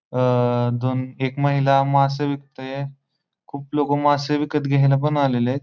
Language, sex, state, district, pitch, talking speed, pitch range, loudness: Marathi, male, Maharashtra, Pune, 140 Hz, 150 wpm, 130-145 Hz, -20 LUFS